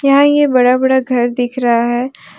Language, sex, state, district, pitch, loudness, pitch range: Hindi, female, Jharkhand, Deoghar, 255 Hz, -13 LUFS, 245-270 Hz